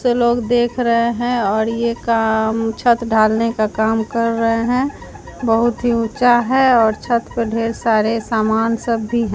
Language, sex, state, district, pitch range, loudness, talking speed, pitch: Hindi, female, Bihar, Katihar, 225-240 Hz, -17 LUFS, 175 wpm, 230 Hz